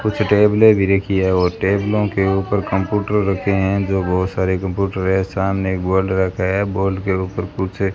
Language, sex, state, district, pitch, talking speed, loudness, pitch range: Hindi, male, Rajasthan, Bikaner, 95 Hz, 205 wpm, -18 LUFS, 95-100 Hz